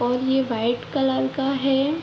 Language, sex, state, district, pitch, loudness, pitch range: Hindi, female, Jharkhand, Jamtara, 265 Hz, -22 LUFS, 250-275 Hz